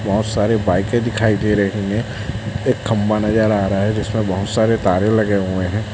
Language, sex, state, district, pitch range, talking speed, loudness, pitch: Hindi, male, Chhattisgarh, Raipur, 100-110 Hz, 200 wpm, -18 LUFS, 105 Hz